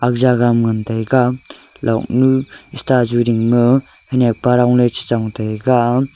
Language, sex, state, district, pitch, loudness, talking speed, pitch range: Wancho, male, Arunachal Pradesh, Longding, 120 Hz, -15 LUFS, 155 wpm, 115-130 Hz